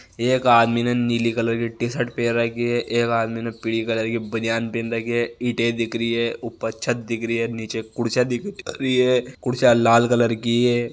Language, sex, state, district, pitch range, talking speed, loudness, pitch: Marwari, male, Rajasthan, Nagaur, 115-120 Hz, 215 wpm, -21 LUFS, 115 Hz